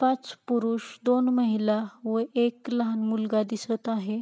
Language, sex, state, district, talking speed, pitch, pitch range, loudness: Marathi, female, Maharashtra, Pune, 140 wpm, 230 Hz, 220-240 Hz, -27 LUFS